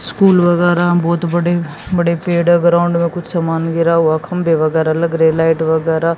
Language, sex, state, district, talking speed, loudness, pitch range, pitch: Hindi, female, Haryana, Jhajjar, 175 wpm, -14 LUFS, 165-175 Hz, 170 Hz